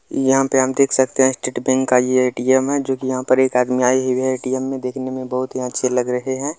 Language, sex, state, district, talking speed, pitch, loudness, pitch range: Maithili, male, Bihar, Kishanganj, 300 wpm, 130 Hz, -18 LUFS, 125-130 Hz